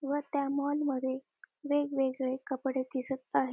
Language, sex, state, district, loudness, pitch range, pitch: Marathi, female, Maharashtra, Dhule, -33 LUFS, 260-285 Hz, 270 Hz